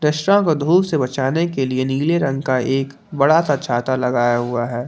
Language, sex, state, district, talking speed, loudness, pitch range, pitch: Hindi, male, Jharkhand, Palamu, 195 wpm, -18 LUFS, 130-160 Hz, 135 Hz